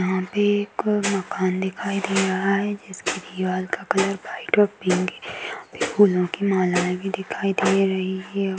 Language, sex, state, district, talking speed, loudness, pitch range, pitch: Hindi, male, Chhattisgarh, Bastar, 180 wpm, -23 LUFS, 185-200 Hz, 195 Hz